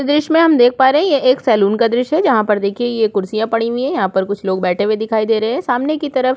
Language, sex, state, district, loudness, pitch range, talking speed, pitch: Hindi, female, Chhattisgarh, Korba, -15 LUFS, 210-260 Hz, 340 wpm, 230 Hz